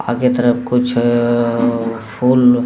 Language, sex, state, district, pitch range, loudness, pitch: Hindi, male, Bihar, Saran, 120-125 Hz, -15 LUFS, 120 Hz